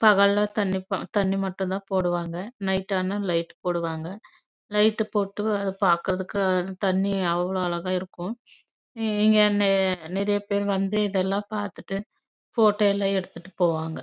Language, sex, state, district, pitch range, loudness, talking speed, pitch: Tamil, female, Karnataka, Chamarajanagar, 185-205 Hz, -25 LUFS, 75 wpm, 195 Hz